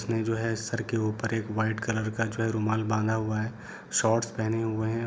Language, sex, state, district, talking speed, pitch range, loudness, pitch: Hindi, male, Bihar, Saran, 250 wpm, 110-115 Hz, -29 LUFS, 110 Hz